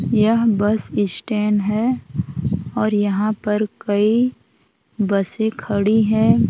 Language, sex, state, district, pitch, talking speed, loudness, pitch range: Hindi, female, Chhattisgarh, Raigarh, 215 Hz, 100 wpm, -19 LUFS, 205-220 Hz